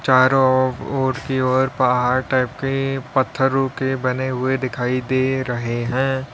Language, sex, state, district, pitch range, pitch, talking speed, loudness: Hindi, male, Uttar Pradesh, Lalitpur, 130-135 Hz, 130 Hz, 140 wpm, -20 LUFS